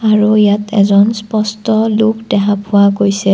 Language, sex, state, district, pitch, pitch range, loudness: Assamese, female, Assam, Kamrup Metropolitan, 210 Hz, 200-220 Hz, -12 LUFS